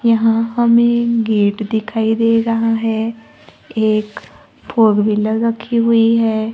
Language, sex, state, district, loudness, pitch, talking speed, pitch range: Hindi, female, Maharashtra, Gondia, -15 LUFS, 225 Hz, 120 wpm, 220-230 Hz